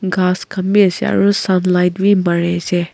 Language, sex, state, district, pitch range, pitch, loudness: Nagamese, female, Nagaland, Kohima, 180-195 Hz, 185 Hz, -15 LUFS